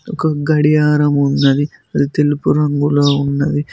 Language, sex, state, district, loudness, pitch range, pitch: Telugu, male, Telangana, Mahabubabad, -15 LUFS, 140-150 Hz, 145 Hz